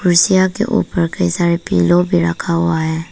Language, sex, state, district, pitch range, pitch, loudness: Hindi, female, Arunachal Pradesh, Papum Pare, 160-185 Hz, 170 Hz, -15 LUFS